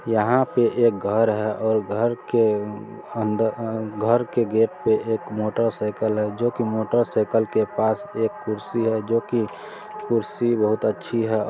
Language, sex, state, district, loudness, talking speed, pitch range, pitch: Maithili, male, Bihar, Supaul, -22 LUFS, 165 wpm, 110-115 Hz, 110 Hz